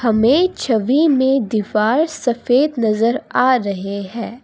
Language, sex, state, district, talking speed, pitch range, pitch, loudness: Hindi, female, Assam, Kamrup Metropolitan, 120 wpm, 220-270 Hz, 240 Hz, -17 LUFS